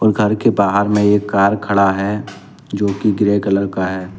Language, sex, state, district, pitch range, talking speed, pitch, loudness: Hindi, male, Jharkhand, Ranchi, 100-105 Hz, 200 wpm, 100 Hz, -16 LUFS